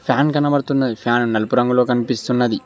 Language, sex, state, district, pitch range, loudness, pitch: Telugu, male, Telangana, Mahabubabad, 120-135 Hz, -18 LUFS, 125 Hz